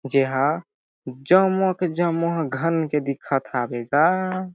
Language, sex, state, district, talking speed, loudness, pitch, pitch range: Chhattisgarhi, male, Chhattisgarh, Jashpur, 120 wpm, -22 LUFS, 160 Hz, 135-180 Hz